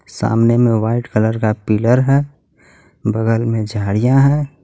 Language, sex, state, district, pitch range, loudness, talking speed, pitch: Hindi, male, Jharkhand, Garhwa, 110-125 Hz, -16 LUFS, 140 wpm, 115 Hz